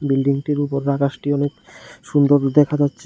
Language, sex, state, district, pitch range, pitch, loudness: Bengali, male, Tripura, West Tripura, 140-145 Hz, 145 Hz, -19 LUFS